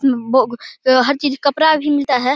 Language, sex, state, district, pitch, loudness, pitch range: Hindi, male, Bihar, Begusarai, 270 Hz, -15 LUFS, 255-285 Hz